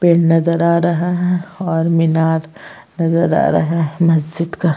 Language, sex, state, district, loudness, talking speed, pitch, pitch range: Hindi, female, Uttar Pradesh, Jyotiba Phule Nagar, -15 LUFS, 165 wpm, 170 Hz, 165-170 Hz